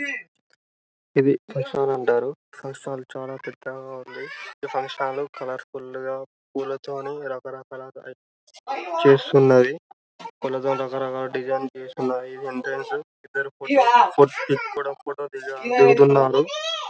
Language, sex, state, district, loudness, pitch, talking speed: Telugu, male, Telangana, Karimnagar, -22 LUFS, 135 Hz, 105 wpm